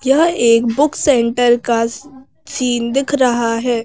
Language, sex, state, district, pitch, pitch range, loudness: Hindi, female, Madhya Pradesh, Bhopal, 245 Hz, 235-275 Hz, -15 LUFS